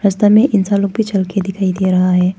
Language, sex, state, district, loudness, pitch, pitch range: Hindi, female, Arunachal Pradesh, Papum Pare, -14 LUFS, 195 Hz, 185-205 Hz